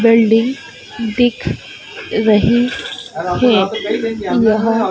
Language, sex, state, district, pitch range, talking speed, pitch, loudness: Hindi, female, Madhya Pradesh, Dhar, 215-235 Hz, 60 wpm, 225 Hz, -15 LUFS